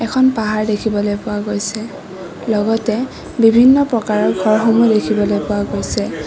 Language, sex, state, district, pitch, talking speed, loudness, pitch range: Assamese, female, Assam, Kamrup Metropolitan, 215 Hz, 115 wpm, -15 LUFS, 210-230 Hz